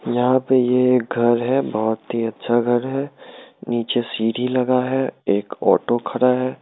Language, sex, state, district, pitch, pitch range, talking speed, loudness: Hindi, male, Bihar, Muzaffarpur, 125 Hz, 120-130 Hz, 170 wpm, -20 LUFS